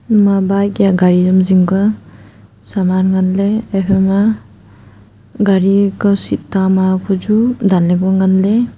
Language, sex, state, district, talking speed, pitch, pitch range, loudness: Wancho, female, Arunachal Pradesh, Longding, 130 wpm, 190 Hz, 185-200 Hz, -13 LUFS